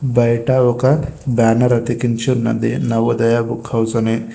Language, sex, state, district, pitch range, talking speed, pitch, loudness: Telugu, male, Telangana, Hyderabad, 115-125 Hz, 125 wpm, 115 Hz, -16 LUFS